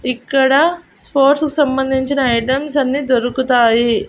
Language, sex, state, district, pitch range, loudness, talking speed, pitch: Telugu, female, Andhra Pradesh, Annamaya, 250-280 Hz, -15 LUFS, 105 wpm, 270 Hz